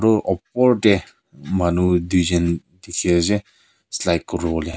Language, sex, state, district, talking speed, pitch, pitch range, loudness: Nagamese, male, Nagaland, Kohima, 125 wpm, 90 Hz, 85-105 Hz, -20 LUFS